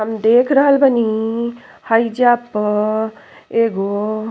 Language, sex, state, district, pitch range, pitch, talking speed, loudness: Bhojpuri, female, Uttar Pradesh, Ghazipur, 215-240 Hz, 225 Hz, 110 wpm, -16 LUFS